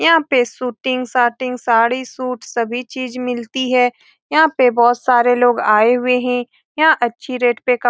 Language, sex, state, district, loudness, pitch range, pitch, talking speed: Hindi, female, Bihar, Saran, -16 LUFS, 240-255 Hz, 250 Hz, 175 wpm